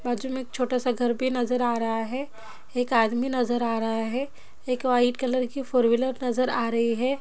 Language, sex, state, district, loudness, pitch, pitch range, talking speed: Hindi, female, Bihar, Jahanabad, -25 LUFS, 245 Hz, 235-255 Hz, 225 wpm